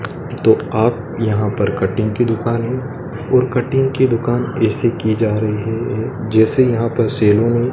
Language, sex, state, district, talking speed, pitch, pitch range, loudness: Hindi, male, Madhya Pradesh, Dhar, 180 wpm, 115 Hz, 110-125 Hz, -17 LUFS